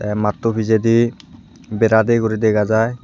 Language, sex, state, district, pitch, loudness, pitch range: Chakma, male, Tripura, Unakoti, 110 Hz, -17 LUFS, 110-115 Hz